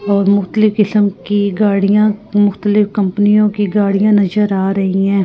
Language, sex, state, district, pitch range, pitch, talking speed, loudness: Hindi, female, Delhi, New Delhi, 200-210 Hz, 205 Hz, 115 wpm, -13 LUFS